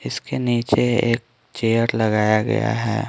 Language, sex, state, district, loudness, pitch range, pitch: Hindi, male, Bihar, Patna, -20 LUFS, 110-120 Hz, 115 Hz